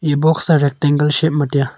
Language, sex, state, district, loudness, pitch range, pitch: Wancho, male, Arunachal Pradesh, Longding, -15 LUFS, 145-155 Hz, 150 Hz